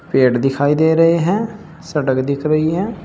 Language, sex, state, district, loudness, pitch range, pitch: Hindi, male, Uttar Pradesh, Saharanpur, -16 LUFS, 140-170 Hz, 155 Hz